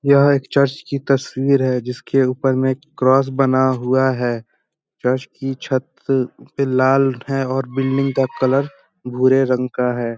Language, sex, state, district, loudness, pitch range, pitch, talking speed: Hindi, male, Bihar, Muzaffarpur, -18 LUFS, 130-135 Hz, 130 Hz, 165 wpm